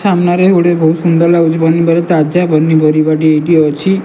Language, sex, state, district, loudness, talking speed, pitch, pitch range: Odia, male, Odisha, Malkangiri, -10 LUFS, 150 wpm, 165 Hz, 155-175 Hz